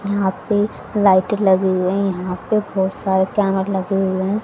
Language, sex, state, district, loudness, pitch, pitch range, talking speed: Hindi, female, Haryana, Charkhi Dadri, -18 LUFS, 190 Hz, 190-205 Hz, 175 wpm